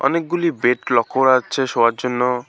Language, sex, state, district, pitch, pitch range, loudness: Bengali, male, West Bengal, Alipurduar, 125 Hz, 125-135 Hz, -18 LUFS